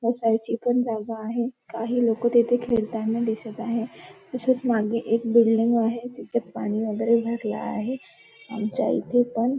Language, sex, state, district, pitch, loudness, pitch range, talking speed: Marathi, female, Maharashtra, Nagpur, 230 Hz, -24 LUFS, 225-245 Hz, 150 wpm